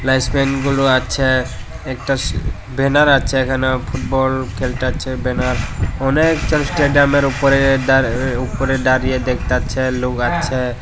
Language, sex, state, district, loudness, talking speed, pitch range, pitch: Bengali, male, Tripura, West Tripura, -16 LUFS, 105 wpm, 125-135 Hz, 130 Hz